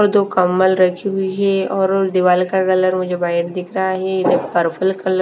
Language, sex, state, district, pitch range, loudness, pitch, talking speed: Hindi, female, Bihar, West Champaran, 180-190 Hz, -17 LUFS, 185 Hz, 230 wpm